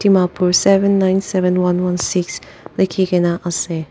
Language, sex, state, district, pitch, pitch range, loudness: Nagamese, female, Nagaland, Dimapur, 180 Hz, 180-190 Hz, -16 LUFS